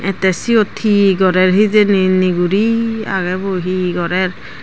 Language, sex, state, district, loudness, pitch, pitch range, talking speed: Chakma, female, Tripura, Dhalai, -14 LUFS, 190 Hz, 185-205 Hz, 130 wpm